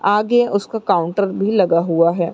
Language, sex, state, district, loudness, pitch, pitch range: Hindi, female, Chhattisgarh, Raigarh, -17 LUFS, 200 Hz, 170-210 Hz